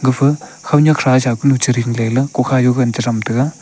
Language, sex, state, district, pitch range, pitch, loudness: Wancho, male, Arunachal Pradesh, Longding, 120-140 Hz, 130 Hz, -15 LUFS